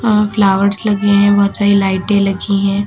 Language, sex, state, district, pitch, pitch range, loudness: Hindi, male, Uttar Pradesh, Lucknow, 200 Hz, 195-205 Hz, -12 LUFS